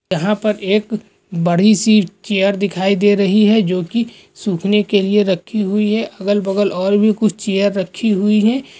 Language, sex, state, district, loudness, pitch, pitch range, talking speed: Hindi, male, Uttarakhand, Tehri Garhwal, -15 LUFS, 205 Hz, 195-215 Hz, 185 wpm